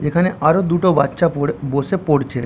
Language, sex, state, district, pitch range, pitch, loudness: Bengali, male, West Bengal, Jhargram, 140-175 Hz, 150 Hz, -17 LUFS